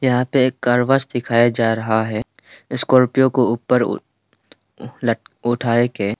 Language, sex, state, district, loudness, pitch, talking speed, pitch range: Hindi, male, Arunachal Pradesh, Lower Dibang Valley, -18 LUFS, 120 Hz, 145 wpm, 115-130 Hz